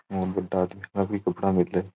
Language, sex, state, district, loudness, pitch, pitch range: Rajasthani, male, Rajasthan, Churu, -27 LUFS, 95 Hz, 90-95 Hz